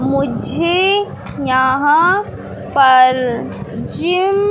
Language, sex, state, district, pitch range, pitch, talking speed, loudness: Hindi, male, Madhya Pradesh, Katni, 260-390 Hz, 340 Hz, 65 wpm, -14 LUFS